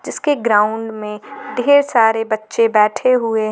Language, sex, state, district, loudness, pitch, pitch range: Hindi, female, Jharkhand, Garhwa, -16 LUFS, 225 Hz, 215-255 Hz